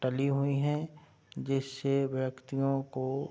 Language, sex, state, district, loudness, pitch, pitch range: Hindi, male, Bihar, Saharsa, -32 LUFS, 135 Hz, 130-140 Hz